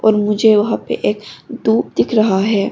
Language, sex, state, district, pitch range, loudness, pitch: Hindi, female, Arunachal Pradesh, Longding, 210-220 Hz, -15 LUFS, 215 Hz